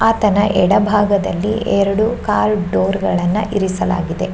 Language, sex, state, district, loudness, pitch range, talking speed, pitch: Kannada, female, Karnataka, Shimoga, -16 LUFS, 195-215 Hz, 95 wpm, 205 Hz